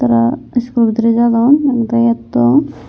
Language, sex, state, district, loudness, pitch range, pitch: Chakma, female, Tripura, Unakoti, -13 LUFS, 225-240 Hz, 235 Hz